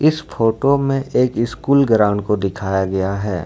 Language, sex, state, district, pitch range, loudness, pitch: Hindi, male, Jharkhand, Ranchi, 100-135 Hz, -17 LUFS, 115 Hz